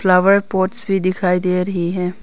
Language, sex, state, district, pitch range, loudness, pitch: Hindi, female, Arunachal Pradesh, Papum Pare, 180-195 Hz, -17 LUFS, 185 Hz